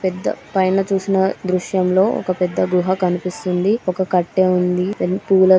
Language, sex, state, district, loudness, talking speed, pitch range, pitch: Telugu, female, Telangana, Karimnagar, -18 LUFS, 150 wpm, 180-190 Hz, 185 Hz